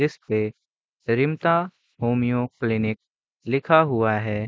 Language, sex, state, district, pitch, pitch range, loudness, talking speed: Hindi, male, Bihar, Gopalganj, 120 Hz, 110-145 Hz, -23 LUFS, 95 wpm